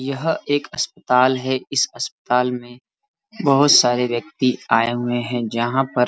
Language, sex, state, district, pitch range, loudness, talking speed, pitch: Hindi, male, Uttar Pradesh, Varanasi, 120-140 Hz, -19 LUFS, 160 wpm, 125 Hz